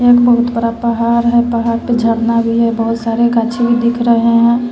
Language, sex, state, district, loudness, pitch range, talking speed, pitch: Hindi, female, Bihar, West Champaran, -13 LUFS, 230-240 Hz, 230 wpm, 235 Hz